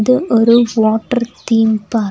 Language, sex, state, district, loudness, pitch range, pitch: Tamil, female, Tamil Nadu, Nilgiris, -13 LUFS, 220-240 Hz, 225 Hz